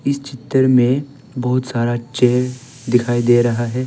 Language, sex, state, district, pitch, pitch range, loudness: Hindi, male, Arunachal Pradesh, Longding, 125 Hz, 120-130 Hz, -17 LUFS